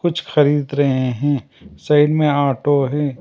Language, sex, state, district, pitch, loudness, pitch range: Hindi, male, Karnataka, Bangalore, 145 Hz, -17 LUFS, 140-150 Hz